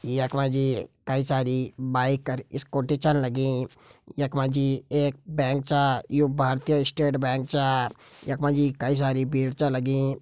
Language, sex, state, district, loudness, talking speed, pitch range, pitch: Garhwali, male, Uttarakhand, Tehri Garhwal, -25 LUFS, 170 wpm, 130-140 Hz, 135 Hz